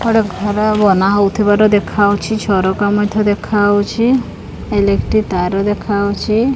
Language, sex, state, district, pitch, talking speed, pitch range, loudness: Odia, female, Odisha, Khordha, 205 Hz, 100 wpm, 200-215 Hz, -14 LUFS